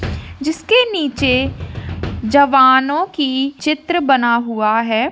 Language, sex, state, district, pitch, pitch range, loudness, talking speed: Hindi, female, Rajasthan, Churu, 265 Hz, 220-305 Hz, -15 LUFS, 95 wpm